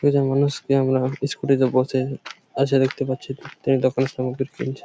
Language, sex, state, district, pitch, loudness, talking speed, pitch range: Bengali, male, West Bengal, Paschim Medinipur, 135 Hz, -22 LUFS, 175 wpm, 130-140 Hz